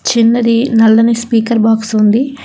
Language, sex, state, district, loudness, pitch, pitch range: Telugu, female, Telangana, Hyderabad, -11 LUFS, 230 Hz, 225-235 Hz